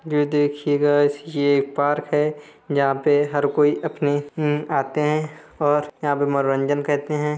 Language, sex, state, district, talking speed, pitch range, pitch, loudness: Hindi, male, Uttar Pradesh, Hamirpur, 155 wpm, 145-150 Hz, 145 Hz, -21 LUFS